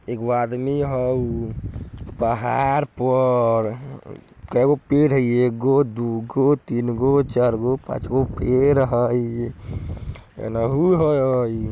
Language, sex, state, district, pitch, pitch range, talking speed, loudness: Hindi, male, Bihar, Vaishali, 125 Hz, 115-135 Hz, 125 wpm, -20 LUFS